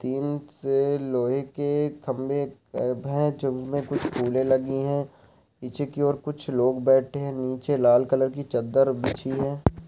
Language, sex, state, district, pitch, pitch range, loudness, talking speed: Hindi, male, Bihar, Saharsa, 135 Hz, 130-140 Hz, -25 LUFS, 160 wpm